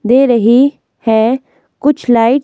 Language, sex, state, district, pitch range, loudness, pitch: Hindi, female, Himachal Pradesh, Shimla, 230-270 Hz, -12 LUFS, 255 Hz